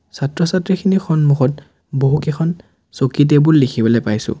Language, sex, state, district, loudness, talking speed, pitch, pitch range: Assamese, male, Assam, Sonitpur, -16 LUFS, 110 wpm, 145 Hz, 135-165 Hz